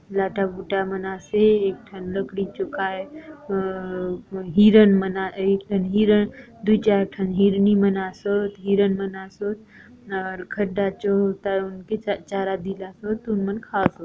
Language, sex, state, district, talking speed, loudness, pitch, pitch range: Halbi, female, Chhattisgarh, Bastar, 135 wpm, -22 LUFS, 195 Hz, 190-205 Hz